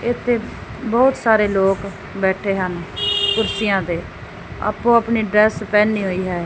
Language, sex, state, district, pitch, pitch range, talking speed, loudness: Punjabi, male, Punjab, Fazilka, 210 Hz, 190-225 Hz, 130 wpm, -18 LUFS